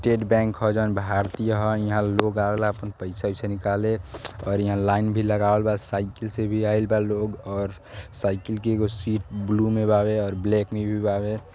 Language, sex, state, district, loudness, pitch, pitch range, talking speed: Bhojpuri, male, Uttar Pradesh, Deoria, -24 LUFS, 105 Hz, 100-110 Hz, 195 wpm